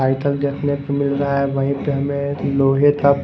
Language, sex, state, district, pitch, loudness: Hindi, male, Chandigarh, Chandigarh, 140 Hz, -19 LUFS